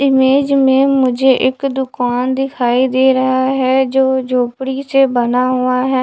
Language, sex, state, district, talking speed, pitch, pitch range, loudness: Hindi, female, Haryana, Charkhi Dadri, 150 wpm, 260 Hz, 255-265 Hz, -14 LUFS